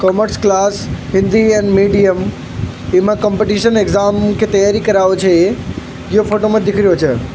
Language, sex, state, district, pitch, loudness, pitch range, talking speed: Marwari, male, Rajasthan, Churu, 200 Hz, -13 LUFS, 190-210 Hz, 145 wpm